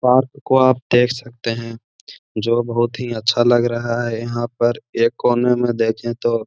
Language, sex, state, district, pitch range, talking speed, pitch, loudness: Hindi, male, Bihar, Gaya, 115-120 Hz, 185 wpm, 120 Hz, -18 LUFS